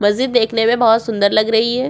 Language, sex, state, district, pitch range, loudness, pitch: Hindi, female, Uttar Pradesh, Jyotiba Phule Nagar, 220-240 Hz, -15 LUFS, 225 Hz